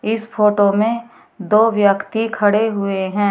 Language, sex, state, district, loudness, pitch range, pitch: Hindi, female, Uttar Pradesh, Shamli, -16 LUFS, 200-220 Hz, 210 Hz